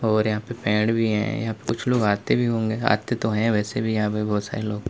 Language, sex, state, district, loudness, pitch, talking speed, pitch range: Hindi, male, Uttar Pradesh, Lalitpur, -23 LUFS, 110 Hz, 255 wpm, 105-115 Hz